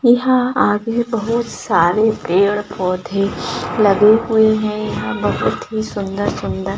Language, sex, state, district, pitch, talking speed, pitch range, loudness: Hindi, female, Rajasthan, Nagaur, 215 Hz, 115 wpm, 200-230 Hz, -17 LUFS